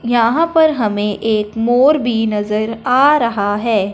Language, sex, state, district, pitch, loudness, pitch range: Hindi, female, Punjab, Fazilka, 230 Hz, -15 LUFS, 210-255 Hz